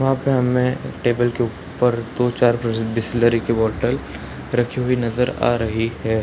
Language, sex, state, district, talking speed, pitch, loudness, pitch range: Hindi, male, Bihar, Sitamarhi, 165 wpm, 120 Hz, -20 LUFS, 115-125 Hz